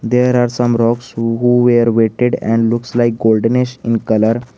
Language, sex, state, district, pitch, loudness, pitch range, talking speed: English, male, Jharkhand, Garhwa, 120 Hz, -14 LUFS, 115-120 Hz, 170 wpm